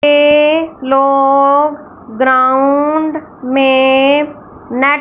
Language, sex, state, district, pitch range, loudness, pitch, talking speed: Hindi, female, Punjab, Fazilka, 265-295 Hz, -11 LUFS, 280 Hz, 70 wpm